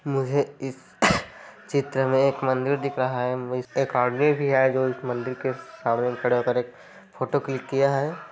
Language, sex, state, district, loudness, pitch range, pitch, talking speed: Hindi, male, Chhattisgarh, Korba, -24 LUFS, 125-140 Hz, 130 Hz, 180 wpm